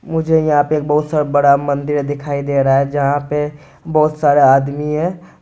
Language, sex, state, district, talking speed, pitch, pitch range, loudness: Hindi, male, Bihar, Purnia, 200 wpm, 145 Hz, 140-155 Hz, -15 LUFS